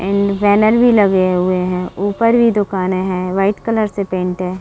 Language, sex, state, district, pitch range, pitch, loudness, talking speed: Hindi, female, Chhattisgarh, Bilaspur, 185-210 Hz, 195 Hz, -15 LUFS, 195 wpm